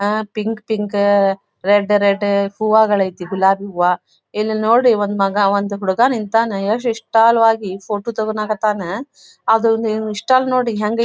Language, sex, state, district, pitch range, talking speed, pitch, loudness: Kannada, female, Karnataka, Dharwad, 200-225 Hz, 135 wpm, 215 Hz, -17 LUFS